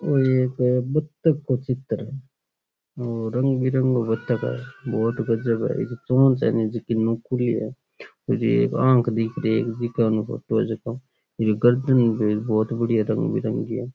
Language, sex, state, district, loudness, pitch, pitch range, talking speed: Rajasthani, male, Rajasthan, Churu, -23 LUFS, 120 Hz, 115-130 Hz, 145 wpm